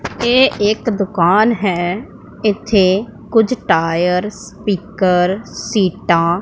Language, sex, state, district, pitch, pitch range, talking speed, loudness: Hindi, female, Punjab, Pathankot, 200 Hz, 180-220 Hz, 95 wpm, -15 LUFS